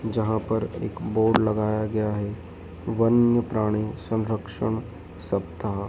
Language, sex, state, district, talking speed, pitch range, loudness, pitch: Hindi, male, Madhya Pradesh, Dhar, 110 wpm, 100-110 Hz, -25 LUFS, 110 Hz